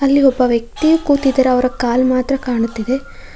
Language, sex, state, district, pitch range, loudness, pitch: Kannada, female, Karnataka, Bangalore, 245-275 Hz, -15 LUFS, 255 Hz